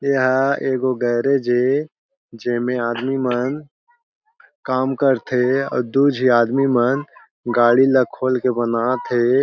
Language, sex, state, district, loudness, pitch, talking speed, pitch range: Chhattisgarhi, male, Chhattisgarh, Jashpur, -18 LUFS, 130 Hz, 125 wpm, 120-140 Hz